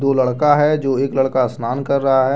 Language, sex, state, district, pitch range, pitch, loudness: Hindi, male, Jharkhand, Deoghar, 130-140 Hz, 135 Hz, -17 LUFS